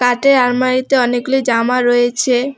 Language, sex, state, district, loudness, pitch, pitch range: Bengali, female, West Bengal, Alipurduar, -14 LUFS, 250 Hz, 245-260 Hz